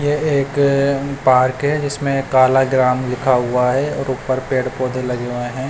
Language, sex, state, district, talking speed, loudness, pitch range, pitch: Hindi, male, Chandigarh, Chandigarh, 190 wpm, -17 LUFS, 125-140 Hz, 130 Hz